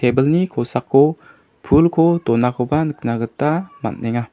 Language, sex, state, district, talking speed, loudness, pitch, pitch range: Garo, male, Meghalaya, South Garo Hills, 95 wpm, -18 LUFS, 135 Hz, 120-160 Hz